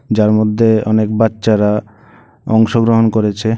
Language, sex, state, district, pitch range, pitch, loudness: Bengali, male, Tripura, West Tripura, 105-115 Hz, 110 Hz, -13 LUFS